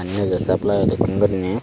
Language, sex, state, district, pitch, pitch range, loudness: Chakma, male, Tripura, Dhalai, 95 Hz, 95-100 Hz, -19 LUFS